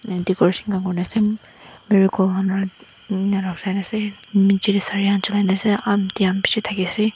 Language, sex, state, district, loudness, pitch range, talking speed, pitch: Nagamese, female, Nagaland, Dimapur, -20 LUFS, 190-205 Hz, 85 wpm, 195 Hz